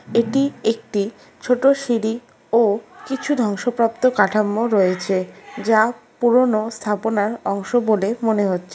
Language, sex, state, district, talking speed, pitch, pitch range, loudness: Bengali, female, West Bengal, Alipurduar, 110 wpm, 225 Hz, 205-240 Hz, -19 LUFS